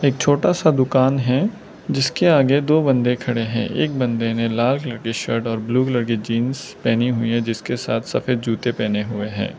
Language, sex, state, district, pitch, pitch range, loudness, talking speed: Hindi, male, Arunachal Pradesh, Lower Dibang Valley, 120 Hz, 115-130 Hz, -20 LUFS, 200 wpm